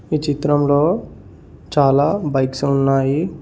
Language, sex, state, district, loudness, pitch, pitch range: Telugu, male, Telangana, Mahabubabad, -17 LUFS, 140 Hz, 135-150 Hz